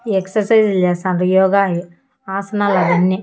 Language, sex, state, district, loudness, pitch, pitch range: Telugu, female, Andhra Pradesh, Annamaya, -16 LUFS, 190 Hz, 180-205 Hz